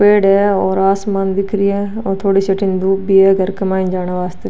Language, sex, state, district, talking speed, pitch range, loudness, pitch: Marwari, female, Rajasthan, Nagaur, 265 wpm, 190-200 Hz, -15 LUFS, 195 Hz